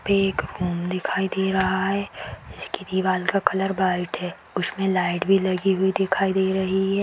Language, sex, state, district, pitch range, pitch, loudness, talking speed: Hindi, female, Uttar Pradesh, Etah, 185-195 Hz, 190 Hz, -23 LUFS, 195 wpm